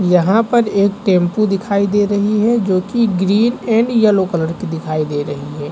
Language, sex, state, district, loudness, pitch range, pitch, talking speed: Hindi, male, Uttar Pradesh, Varanasi, -15 LUFS, 175-215 Hz, 200 Hz, 200 wpm